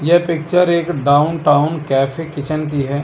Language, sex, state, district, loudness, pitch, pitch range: Hindi, male, Chandigarh, Chandigarh, -16 LUFS, 155 Hz, 145-170 Hz